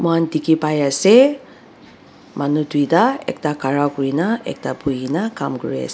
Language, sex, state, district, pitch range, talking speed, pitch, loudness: Nagamese, female, Nagaland, Dimapur, 145-195 Hz, 100 wpm, 155 Hz, -18 LUFS